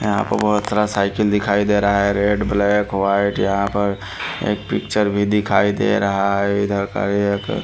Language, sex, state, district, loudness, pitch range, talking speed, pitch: Hindi, male, Haryana, Rohtak, -18 LUFS, 100-105 Hz, 175 wpm, 100 Hz